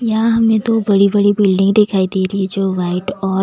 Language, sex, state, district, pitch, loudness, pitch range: Hindi, female, Maharashtra, Mumbai Suburban, 195 Hz, -14 LUFS, 190-215 Hz